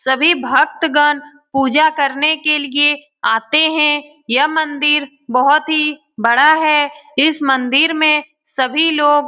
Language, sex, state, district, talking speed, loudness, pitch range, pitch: Hindi, female, Bihar, Lakhisarai, 130 wpm, -14 LUFS, 280-305 Hz, 295 Hz